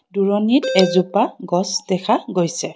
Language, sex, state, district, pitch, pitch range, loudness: Assamese, female, Assam, Kamrup Metropolitan, 195 Hz, 180-225 Hz, -18 LUFS